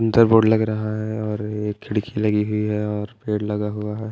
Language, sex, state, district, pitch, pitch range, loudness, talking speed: Hindi, male, Haryana, Jhajjar, 105 Hz, 105-110 Hz, -22 LUFS, 235 wpm